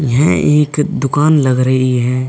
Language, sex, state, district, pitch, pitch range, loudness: Hindi, male, Uttar Pradesh, Budaun, 135 Hz, 130-150 Hz, -13 LUFS